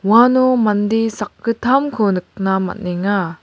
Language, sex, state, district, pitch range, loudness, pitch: Garo, female, Meghalaya, West Garo Hills, 190-235 Hz, -17 LUFS, 210 Hz